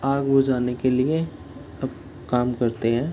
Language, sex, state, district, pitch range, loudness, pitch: Hindi, male, Bihar, Gopalganj, 120-135 Hz, -23 LUFS, 130 Hz